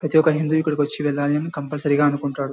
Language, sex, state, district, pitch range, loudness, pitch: Telugu, male, Karnataka, Bellary, 145-155 Hz, -21 LUFS, 145 Hz